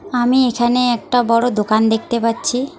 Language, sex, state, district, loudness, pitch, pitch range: Bengali, female, West Bengal, Alipurduar, -16 LUFS, 240 Hz, 230-250 Hz